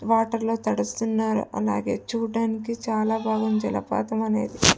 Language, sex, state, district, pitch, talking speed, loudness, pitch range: Telugu, female, Andhra Pradesh, Sri Satya Sai, 220 Hz, 125 wpm, -25 LUFS, 215-225 Hz